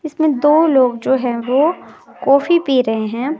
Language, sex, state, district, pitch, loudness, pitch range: Hindi, female, Himachal Pradesh, Shimla, 275 Hz, -15 LUFS, 250-310 Hz